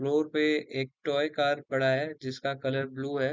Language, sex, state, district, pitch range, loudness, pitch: Hindi, male, Uttar Pradesh, Deoria, 135-150 Hz, -30 LUFS, 140 Hz